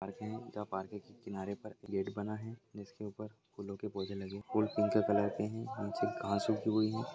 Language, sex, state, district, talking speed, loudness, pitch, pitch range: Hindi, male, Chhattisgarh, Raigarh, 235 wpm, -37 LUFS, 105 Hz, 100-110 Hz